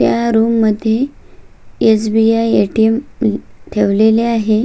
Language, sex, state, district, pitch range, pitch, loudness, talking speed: Marathi, female, Maharashtra, Sindhudurg, 215-230 Hz, 220 Hz, -14 LUFS, 90 wpm